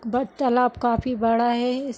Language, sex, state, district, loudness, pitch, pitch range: Hindi, female, Uttar Pradesh, Hamirpur, -22 LUFS, 245 Hz, 240-250 Hz